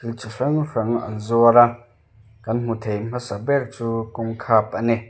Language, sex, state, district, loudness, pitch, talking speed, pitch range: Mizo, male, Mizoram, Aizawl, -21 LUFS, 115 Hz, 175 wpm, 110-120 Hz